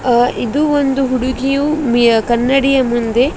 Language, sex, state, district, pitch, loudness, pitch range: Kannada, female, Karnataka, Dakshina Kannada, 255 Hz, -14 LUFS, 240-275 Hz